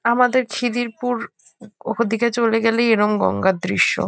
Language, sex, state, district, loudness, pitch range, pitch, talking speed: Bengali, female, West Bengal, Kolkata, -19 LUFS, 225-240 Hz, 235 Hz, 115 wpm